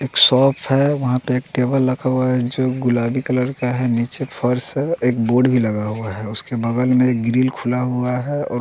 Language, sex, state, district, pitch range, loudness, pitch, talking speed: Hindi, male, Bihar, West Champaran, 120-130 Hz, -18 LUFS, 125 Hz, 230 wpm